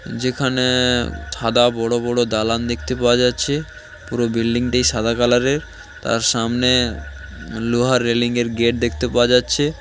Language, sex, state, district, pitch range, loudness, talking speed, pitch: Bengali, male, West Bengal, Paschim Medinipur, 115-125 Hz, -18 LUFS, 145 wpm, 120 Hz